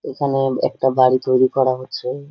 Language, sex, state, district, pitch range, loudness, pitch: Bengali, male, West Bengal, Malda, 130-135 Hz, -18 LUFS, 130 Hz